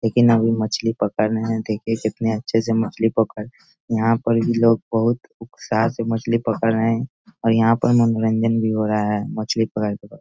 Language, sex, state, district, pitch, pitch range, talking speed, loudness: Hindi, male, Bihar, Sitamarhi, 115 Hz, 110-115 Hz, 195 wpm, -20 LUFS